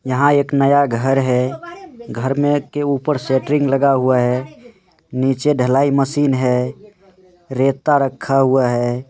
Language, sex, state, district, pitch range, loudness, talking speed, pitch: Hindi, male, Rajasthan, Nagaur, 130-145 Hz, -16 LUFS, 130 wpm, 135 Hz